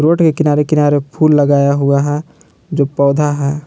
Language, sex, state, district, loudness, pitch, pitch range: Hindi, male, Jharkhand, Palamu, -13 LUFS, 145 Hz, 140-155 Hz